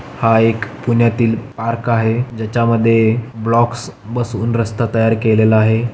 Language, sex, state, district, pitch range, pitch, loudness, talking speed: Marathi, male, Maharashtra, Pune, 110-115 Hz, 115 Hz, -15 LUFS, 130 wpm